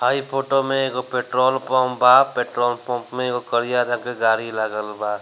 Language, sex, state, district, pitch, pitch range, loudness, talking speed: Bhojpuri, male, Bihar, Gopalganj, 125 Hz, 120-130 Hz, -20 LUFS, 195 wpm